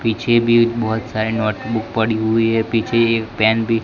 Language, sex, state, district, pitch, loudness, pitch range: Hindi, male, Gujarat, Gandhinagar, 115 Hz, -17 LUFS, 110-115 Hz